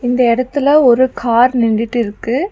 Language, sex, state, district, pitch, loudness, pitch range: Tamil, female, Tamil Nadu, Nilgiris, 245 Hz, -13 LUFS, 235-260 Hz